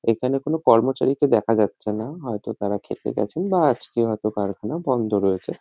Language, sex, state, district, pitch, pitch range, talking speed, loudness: Bengali, male, West Bengal, North 24 Parganas, 115 Hz, 105-130 Hz, 180 wpm, -22 LUFS